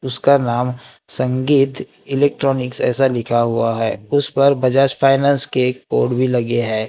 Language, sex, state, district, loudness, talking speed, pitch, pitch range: Hindi, male, Maharashtra, Gondia, -17 LUFS, 155 wpm, 130 Hz, 120-135 Hz